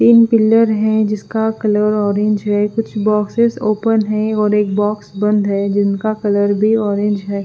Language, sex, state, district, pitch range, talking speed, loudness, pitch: Hindi, female, Punjab, Fazilka, 205-220 Hz, 170 wpm, -15 LUFS, 210 Hz